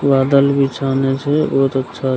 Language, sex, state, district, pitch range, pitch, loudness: Maithili, male, Bihar, Begusarai, 135-140 Hz, 135 Hz, -16 LUFS